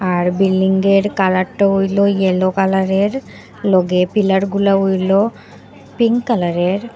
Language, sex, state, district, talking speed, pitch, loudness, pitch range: Bengali, female, Assam, Hailakandi, 145 wpm, 195 Hz, -15 LUFS, 185-200 Hz